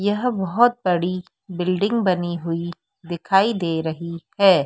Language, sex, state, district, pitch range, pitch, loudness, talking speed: Hindi, female, Madhya Pradesh, Dhar, 170-205 Hz, 185 Hz, -21 LUFS, 130 wpm